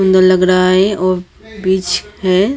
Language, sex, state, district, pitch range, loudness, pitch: Hindi, female, Maharashtra, Gondia, 185-190 Hz, -13 LUFS, 185 Hz